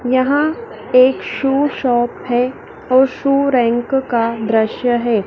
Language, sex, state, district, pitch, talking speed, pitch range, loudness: Hindi, female, Madhya Pradesh, Dhar, 255 Hz, 125 wpm, 240-270 Hz, -16 LUFS